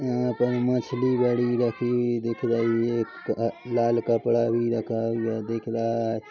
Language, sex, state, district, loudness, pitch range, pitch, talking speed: Hindi, male, Chhattisgarh, Korba, -25 LUFS, 115-120 Hz, 115 Hz, 160 wpm